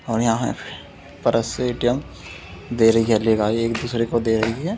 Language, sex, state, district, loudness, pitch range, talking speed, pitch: Hindi, male, Uttar Pradesh, Muzaffarnagar, -21 LUFS, 110-120 Hz, 190 wpm, 115 Hz